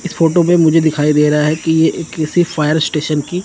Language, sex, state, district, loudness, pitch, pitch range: Hindi, male, Chandigarh, Chandigarh, -14 LUFS, 160 Hz, 150-165 Hz